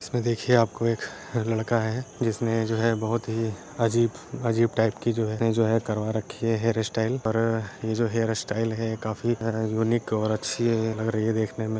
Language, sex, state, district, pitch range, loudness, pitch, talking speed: Hindi, male, Uttar Pradesh, Etah, 110-115 Hz, -26 LUFS, 115 Hz, 195 wpm